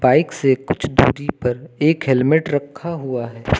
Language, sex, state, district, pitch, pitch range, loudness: Hindi, male, Uttar Pradesh, Lucknow, 135 Hz, 125-155 Hz, -19 LUFS